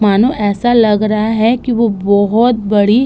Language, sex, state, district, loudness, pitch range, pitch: Hindi, female, Uttar Pradesh, Budaun, -12 LUFS, 205-240 Hz, 215 Hz